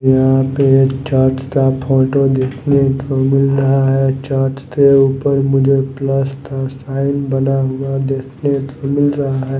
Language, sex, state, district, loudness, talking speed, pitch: Hindi, male, Odisha, Nuapada, -15 LUFS, 150 wpm, 135 Hz